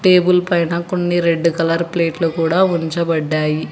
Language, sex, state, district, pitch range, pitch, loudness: Telugu, male, Telangana, Hyderabad, 165-175 Hz, 170 Hz, -17 LUFS